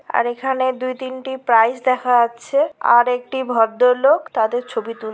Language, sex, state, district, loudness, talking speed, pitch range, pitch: Bengali, female, West Bengal, Purulia, -18 LUFS, 150 wpm, 235-260 Hz, 250 Hz